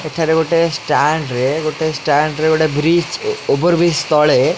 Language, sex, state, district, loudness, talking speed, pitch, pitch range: Odia, male, Odisha, Khordha, -15 LUFS, 155 wpm, 160 Hz, 150-165 Hz